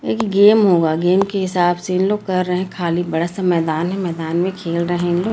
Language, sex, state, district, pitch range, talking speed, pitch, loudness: Hindi, female, Chhattisgarh, Raipur, 170-190 Hz, 245 wpm, 180 Hz, -17 LUFS